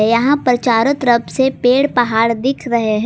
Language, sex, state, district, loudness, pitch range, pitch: Hindi, female, Jharkhand, Garhwa, -14 LUFS, 230-265 Hz, 245 Hz